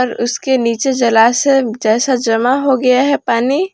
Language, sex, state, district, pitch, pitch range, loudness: Hindi, female, Jharkhand, Palamu, 250 Hz, 235-270 Hz, -13 LUFS